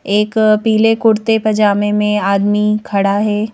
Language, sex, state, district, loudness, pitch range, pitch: Hindi, female, Madhya Pradesh, Bhopal, -13 LUFS, 205-220 Hz, 210 Hz